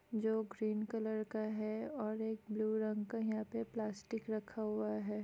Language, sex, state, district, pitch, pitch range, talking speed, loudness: Hindi, female, Chhattisgarh, Sukma, 215 Hz, 215-220 Hz, 195 wpm, -40 LUFS